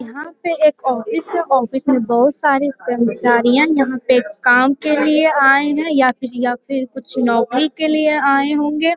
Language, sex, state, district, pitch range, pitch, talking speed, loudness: Hindi, female, Bihar, Jamui, 250-300 Hz, 270 Hz, 180 wpm, -15 LUFS